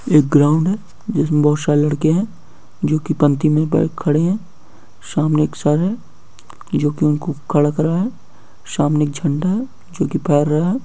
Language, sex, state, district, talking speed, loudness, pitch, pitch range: Hindi, male, Bihar, Samastipur, 160 wpm, -17 LUFS, 155 Hz, 150-170 Hz